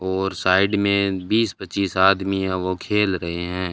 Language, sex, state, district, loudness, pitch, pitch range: Hindi, male, Rajasthan, Bikaner, -21 LUFS, 95 Hz, 95-100 Hz